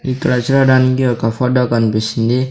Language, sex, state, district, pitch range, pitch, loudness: Telugu, male, Andhra Pradesh, Sri Satya Sai, 115-130 Hz, 125 Hz, -14 LUFS